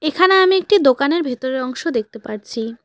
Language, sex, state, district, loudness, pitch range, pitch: Bengali, female, West Bengal, Cooch Behar, -17 LUFS, 230-335 Hz, 260 Hz